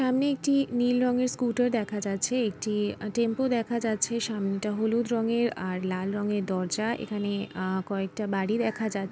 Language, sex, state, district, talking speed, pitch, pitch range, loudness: Bengali, female, West Bengal, Kolkata, 160 wpm, 220 Hz, 200-235 Hz, -28 LUFS